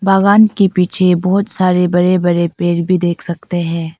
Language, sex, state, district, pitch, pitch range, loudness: Hindi, female, Arunachal Pradesh, Papum Pare, 180 Hz, 175-190 Hz, -13 LUFS